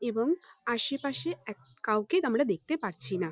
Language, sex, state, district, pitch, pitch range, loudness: Bengali, female, West Bengal, North 24 Parganas, 235 Hz, 205-320 Hz, -30 LUFS